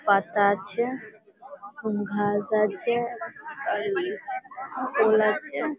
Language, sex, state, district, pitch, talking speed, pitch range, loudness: Bengali, female, West Bengal, Malda, 225 Hz, 85 wpm, 205-310 Hz, -26 LUFS